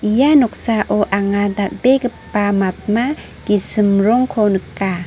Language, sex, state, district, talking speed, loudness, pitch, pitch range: Garo, female, Meghalaya, North Garo Hills, 95 wpm, -16 LUFS, 210 Hz, 200-235 Hz